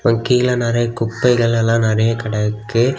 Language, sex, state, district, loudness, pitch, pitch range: Tamil, male, Tamil Nadu, Kanyakumari, -16 LUFS, 115 Hz, 115-120 Hz